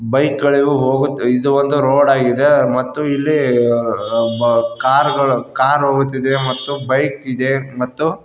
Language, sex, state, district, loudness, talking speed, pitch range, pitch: Kannada, male, Karnataka, Koppal, -15 LUFS, 115 wpm, 125-140 Hz, 135 Hz